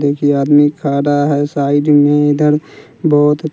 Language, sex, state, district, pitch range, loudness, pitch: Hindi, male, Bihar, West Champaran, 145-150 Hz, -13 LUFS, 145 Hz